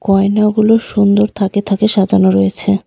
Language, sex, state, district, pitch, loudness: Bengali, female, West Bengal, Alipurduar, 200 Hz, -12 LUFS